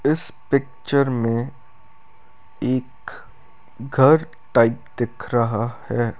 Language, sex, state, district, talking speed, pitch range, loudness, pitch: Hindi, male, Rajasthan, Bikaner, 85 wpm, 115-135 Hz, -21 LUFS, 125 Hz